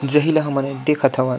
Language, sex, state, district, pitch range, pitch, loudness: Chhattisgarhi, male, Chhattisgarh, Sukma, 135-150 Hz, 140 Hz, -18 LUFS